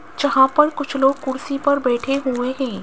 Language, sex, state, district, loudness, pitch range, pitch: Hindi, female, Rajasthan, Jaipur, -19 LUFS, 260-285 Hz, 270 Hz